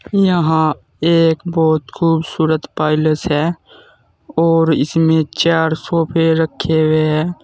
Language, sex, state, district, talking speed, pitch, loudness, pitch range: Hindi, male, Uttar Pradesh, Saharanpur, 105 wpm, 160 Hz, -15 LUFS, 155-165 Hz